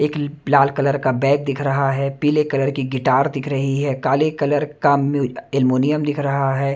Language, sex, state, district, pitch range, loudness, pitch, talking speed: Hindi, male, Maharashtra, Mumbai Suburban, 135-145 Hz, -19 LUFS, 140 Hz, 215 wpm